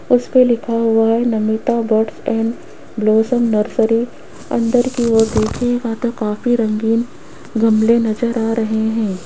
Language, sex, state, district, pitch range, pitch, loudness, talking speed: Hindi, female, Rajasthan, Jaipur, 220-240 Hz, 225 Hz, -16 LUFS, 135 wpm